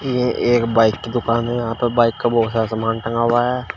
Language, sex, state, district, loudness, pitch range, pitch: Hindi, male, Uttar Pradesh, Shamli, -18 LUFS, 115-120 Hz, 115 Hz